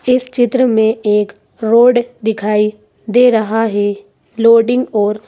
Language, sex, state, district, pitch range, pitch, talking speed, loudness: Hindi, female, Madhya Pradesh, Bhopal, 210-245 Hz, 225 Hz, 125 wpm, -13 LUFS